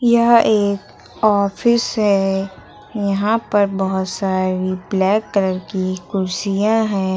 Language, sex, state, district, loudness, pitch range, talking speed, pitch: Hindi, female, Uttar Pradesh, Lucknow, -18 LUFS, 190-215 Hz, 110 wpm, 200 Hz